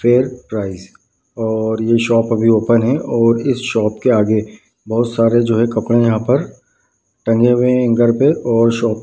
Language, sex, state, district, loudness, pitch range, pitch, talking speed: Hindi, male, Bihar, Madhepura, -15 LUFS, 110-120 Hz, 115 Hz, 195 wpm